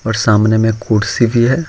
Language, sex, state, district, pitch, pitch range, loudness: Hindi, male, Jharkhand, Ranchi, 115 Hz, 110-120 Hz, -13 LUFS